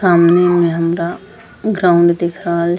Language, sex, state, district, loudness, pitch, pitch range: Angika, female, Bihar, Bhagalpur, -14 LUFS, 175 Hz, 170-180 Hz